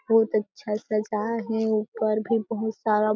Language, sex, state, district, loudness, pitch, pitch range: Chhattisgarhi, female, Chhattisgarh, Jashpur, -26 LUFS, 220 Hz, 215-225 Hz